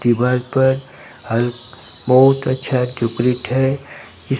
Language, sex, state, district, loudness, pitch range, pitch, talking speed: Hindi, male, Bihar, Katihar, -17 LUFS, 125-135 Hz, 130 Hz, 95 wpm